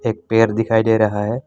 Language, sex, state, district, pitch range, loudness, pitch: Hindi, male, Assam, Kamrup Metropolitan, 110-115 Hz, -17 LUFS, 110 Hz